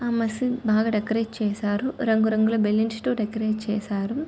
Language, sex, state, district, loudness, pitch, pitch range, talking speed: Telugu, female, Andhra Pradesh, Chittoor, -24 LUFS, 220 Hz, 215-230 Hz, 170 wpm